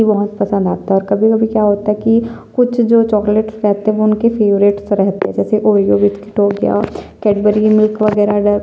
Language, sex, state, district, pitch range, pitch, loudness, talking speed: Hindi, female, Chhattisgarh, Sukma, 205-215 Hz, 210 Hz, -14 LUFS, 200 wpm